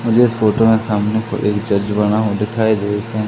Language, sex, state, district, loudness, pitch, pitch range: Hindi, male, Madhya Pradesh, Katni, -16 LUFS, 105 Hz, 105-110 Hz